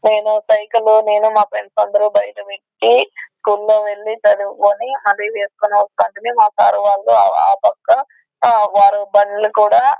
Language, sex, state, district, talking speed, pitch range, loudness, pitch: Telugu, female, Andhra Pradesh, Anantapur, 120 wpm, 205-260 Hz, -14 LUFS, 210 Hz